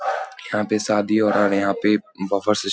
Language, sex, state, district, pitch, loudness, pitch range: Hindi, male, Bihar, Lakhisarai, 105 Hz, -21 LUFS, 100-105 Hz